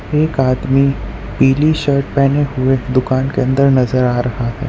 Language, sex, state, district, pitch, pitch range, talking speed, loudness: Hindi, male, Gujarat, Valsad, 130 Hz, 125-140 Hz, 165 wpm, -15 LUFS